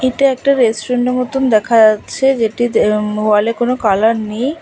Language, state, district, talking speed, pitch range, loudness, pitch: Bengali, West Bengal, Alipurduar, 180 wpm, 215-255 Hz, -14 LUFS, 240 Hz